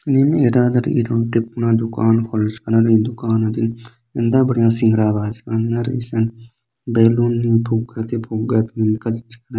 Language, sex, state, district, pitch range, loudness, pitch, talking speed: Sadri, male, Chhattisgarh, Jashpur, 115-120 Hz, -18 LUFS, 115 Hz, 50 wpm